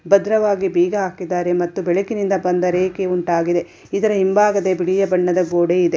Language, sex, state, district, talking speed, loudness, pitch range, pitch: Kannada, female, Karnataka, Shimoga, 140 wpm, -18 LUFS, 175-195 Hz, 185 Hz